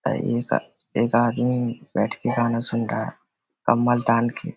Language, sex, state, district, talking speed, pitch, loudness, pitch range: Hindi, male, Bihar, Vaishali, 185 wpm, 120 Hz, -23 LUFS, 115-120 Hz